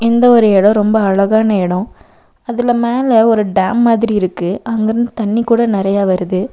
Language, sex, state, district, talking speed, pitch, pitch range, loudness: Tamil, female, Tamil Nadu, Nilgiris, 155 wpm, 220 Hz, 195-235 Hz, -13 LUFS